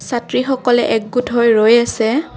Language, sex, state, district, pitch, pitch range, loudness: Assamese, female, Assam, Kamrup Metropolitan, 240 Hz, 225-250 Hz, -14 LUFS